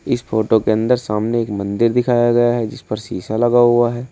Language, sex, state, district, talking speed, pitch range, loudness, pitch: Hindi, male, Uttar Pradesh, Saharanpur, 235 wpm, 110-120 Hz, -17 LUFS, 120 Hz